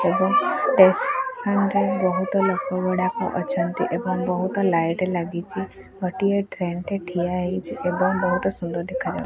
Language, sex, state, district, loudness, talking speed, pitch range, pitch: Odia, female, Odisha, Khordha, -23 LUFS, 135 wpm, 175-195 Hz, 185 Hz